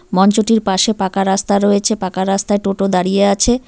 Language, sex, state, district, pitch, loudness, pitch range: Bengali, female, West Bengal, Cooch Behar, 200 Hz, -15 LUFS, 195-210 Hz